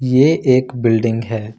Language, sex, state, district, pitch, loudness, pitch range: Hindi, male, Jharkhand, Ranchi, 120 Hz, -15 LUFS, 115-130 Hz